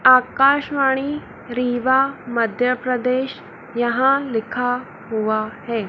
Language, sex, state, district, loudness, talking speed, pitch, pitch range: Hindi, female, Madhya Pradesh, Dhar, -20 LUFS, 80 wpm, 250 Hz, 235-265 Hz